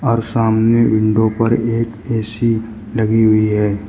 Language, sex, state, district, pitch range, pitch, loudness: Hindi, male, Uttar Pradesh, Shamli, 110-115 Hz, 110 Hz, -15 LUFS